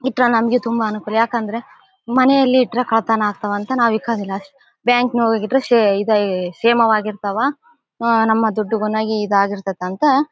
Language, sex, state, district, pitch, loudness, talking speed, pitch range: Kannada, female, Karnataka, Bellary, 225 Hz, -17 LUFS, 120 wpm, 210-245 Hz